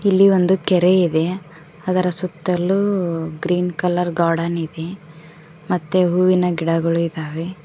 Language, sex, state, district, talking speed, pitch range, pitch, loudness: Kannada, female, Karnataka, Koppal, 110 wpm, 165-185 Hz, 175 Hz, -19 LUFS